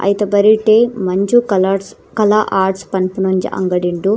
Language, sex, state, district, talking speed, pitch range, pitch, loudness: Tulu, female, Karnataka, Dakshina Kannada, 145 wpm, 190-215 Hz, 195 Hz, -14 LUFS